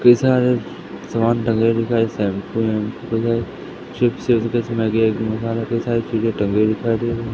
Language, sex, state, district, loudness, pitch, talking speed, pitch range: Hindi, male, Madhya Pradesh, Katni, -19 LUFS, 115 Hz, 180 wpm, 110-115 Hz